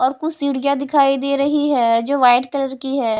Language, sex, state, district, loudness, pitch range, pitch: Hindi, female, Himachal Pradesh, Shimla, -17 LUFS, 255-280 Hz, 275 Hz